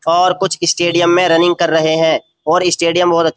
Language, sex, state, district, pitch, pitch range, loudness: Hindi, male, Uttar Pradesh, Jyotiba Phule Nagar, 170 Hz, 165-175 Hz, -13 LUFS